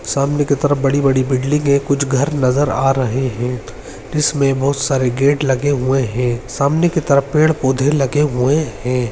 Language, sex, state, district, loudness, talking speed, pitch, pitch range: Hindi, male, Uttarakhand, Uttarkashi, -16 LUFS, 170 wpm, 140 Hz, 130-145 Hz